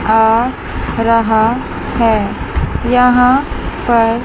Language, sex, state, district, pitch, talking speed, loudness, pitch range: Hindi, female, Chandigarh, Chandigarh, 230 Hz, 70 wpm, -14 LUFS, 225-245 Hz